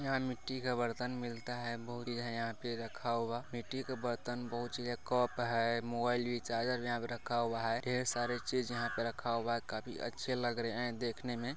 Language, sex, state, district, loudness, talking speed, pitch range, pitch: Hindi, male, Bihar, Jamui, -38 LUFS, 210 wpm, 115-125 Hz, 120 Hz